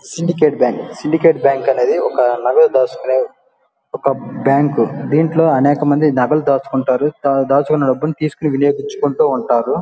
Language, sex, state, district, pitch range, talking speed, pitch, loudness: Telugu, male, Andhra Pradesh, Guntur, 135-155 Hz, 110 wpm, 145 Hz, -15 LUFS